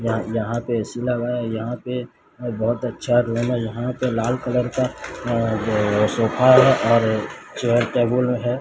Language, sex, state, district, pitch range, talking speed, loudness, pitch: Hindi, male, Odisha, Sambalpur, 115-125 Hz, 165 wpm, -21 LUFS, 120 Hz